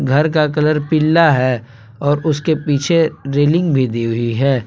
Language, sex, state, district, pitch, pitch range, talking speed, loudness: Hindi, male, Jharkhand, Palamu, 145 Hz, 130-155 Hz, 165 wpm, -15 LUFS